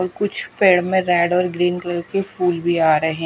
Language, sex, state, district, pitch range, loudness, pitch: Hindi, female, Himachal Pradesh, Shimla, 170-185 Hz, -18 LUFS, 180 Hz